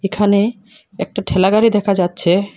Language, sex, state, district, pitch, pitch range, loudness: Bengali, female, Assam, Hailakandi, 200 Hz, 190-210 Hz, -15 LUFS